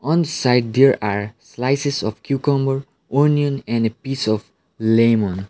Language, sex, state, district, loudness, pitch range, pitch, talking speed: English, male, Sikkim, Gangtok, -19 LUFS, 110-140 Hz, 125 Hz, 140 wpm